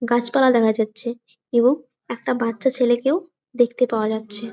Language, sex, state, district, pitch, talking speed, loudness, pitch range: Bengali, female, West Bengal, Jalpaiguri, 240 Hz, 160 wpm, -20 LUFS, 225-255 Hz